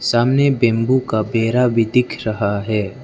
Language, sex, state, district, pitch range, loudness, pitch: Hindi, male, Arunachal Pradesh, Lower Dibang Valley, 110-125 Hz, -17 LUFS, 115 Hz